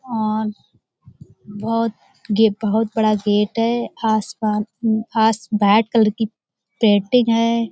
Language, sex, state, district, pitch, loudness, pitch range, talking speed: Hindi, female, Uttar Pradesh, Budaun, 220 Hz, -19 LUFS, 210-225 Hz, 110 wpm